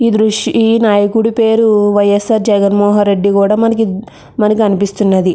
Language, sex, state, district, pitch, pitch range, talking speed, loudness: Telugu, female, Andhra Pradesh, Krishna, 210 Hz, 200-225 Hz, 135 wpm, -11 LUFS